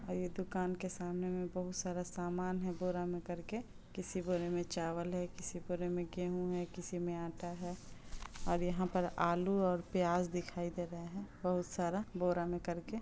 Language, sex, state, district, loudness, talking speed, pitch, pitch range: Hindi, female, Bihar, Purnia, -39 LUFS, 195 wpm, 180 Hz, 175-180 Hz